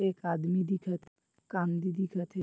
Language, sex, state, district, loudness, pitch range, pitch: Chhattisgarhi, male, Chhattisgarh, Bilaspur, -33 LUFS, 175-190 Hz, 185 Hz